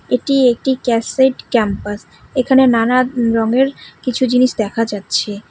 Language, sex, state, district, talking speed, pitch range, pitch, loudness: Bengali, female, West Bengal, Cooch Behar, 120 wpm, 225-255 Hz, 250 Hz, -15 LUFS